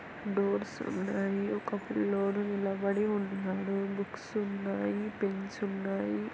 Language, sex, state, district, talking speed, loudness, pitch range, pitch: Telugu, female, Andhra Pradesh, Anantapur, 95 wpm, -33 LUFS, 195-205 Hz, 200 Hz